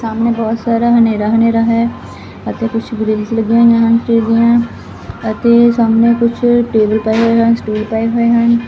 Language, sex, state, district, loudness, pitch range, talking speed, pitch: Punjabi, female, Punjab, Fazilka, -12 LUFS, 225-235 Hz, 160 wpm, 230 Hz